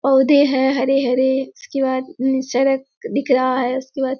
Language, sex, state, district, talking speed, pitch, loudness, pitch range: Hindi, female, Bihar, Kishanganj, 185 wpm, 265 Hz, -18 LUFS, 260-270 Hz